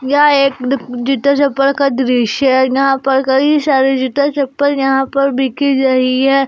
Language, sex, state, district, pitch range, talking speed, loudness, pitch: Hindi, female, Jharkhand, Garhwa, 265-280 Hz, 175 wpm, -13 LUFS, 270 Hz